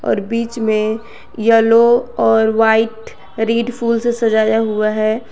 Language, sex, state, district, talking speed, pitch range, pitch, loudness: Hindi, female, Jharkhand, Garhwa, 135 wpm, 220-230 Hz, 225 Hz, -15 LUFS